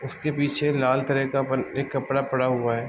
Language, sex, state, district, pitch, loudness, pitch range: Hindi, male, Uttar Pradesh, Varanasi, 135 Hz, -24 LUFS, 130-140 Hz